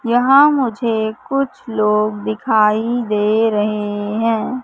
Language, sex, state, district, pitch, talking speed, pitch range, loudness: Hindi, female, Madhya Pradesh, Katni, 220 Hz, 105 wpm, 210-245 Hz, -16 LUFS